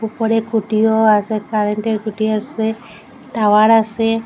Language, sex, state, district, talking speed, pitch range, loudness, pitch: Bengali, female, Assam, Hailakandi, 115 wpm, 215-225 Hz, -16 LUFS, 220 Hz